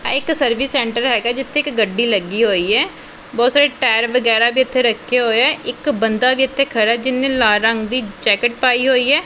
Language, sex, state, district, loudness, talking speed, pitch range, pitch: Punjabi, female, Punjab, Pathankot, -15 LUFS, 220 wpm, 230-265 Hz, 250 Hz